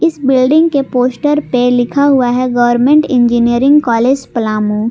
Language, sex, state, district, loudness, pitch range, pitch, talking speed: Hindi, female, Jharkhand, Palamu, -11 LUFS, 240-285 Hz, 255 Hz, 145 wpm